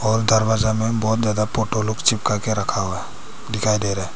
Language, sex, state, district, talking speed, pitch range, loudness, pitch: Hindi, male, Arunachal Pradesh, Papum Pare, 230 wpm, 105-110 Hz, -20 LUFS, 110 Hz